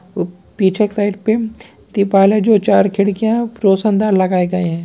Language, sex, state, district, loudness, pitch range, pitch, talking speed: Hindi, female, Bihar, Samastipur, -15 LUFS, 190-220 Hz, 205 Hz, 195 wpm